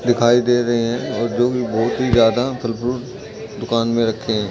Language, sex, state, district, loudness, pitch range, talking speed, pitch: Hindi, male, Chhattisgarh, Raigarh, -18 LUFS, 115-125 Hz, 215 wpm, 120 Hz